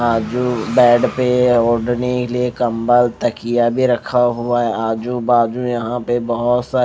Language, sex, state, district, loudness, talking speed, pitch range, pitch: Hindi, male, Maharashtra, Mumbai Suburban, -16 LUFS, 140 wpm, 120-125 Hz, 120 Hz